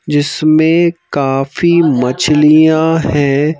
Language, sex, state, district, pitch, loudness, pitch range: Hindi, male, Madhya Pradesh, Bhopal, 150 Hz, -11 LUFS, 145-160 Hz